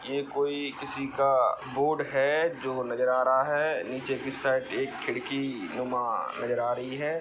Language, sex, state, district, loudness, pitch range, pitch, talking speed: Hindi, male, Bihar, Saran, -28 LUFS, 130-140 Hz, 135 Hz, 175 wpm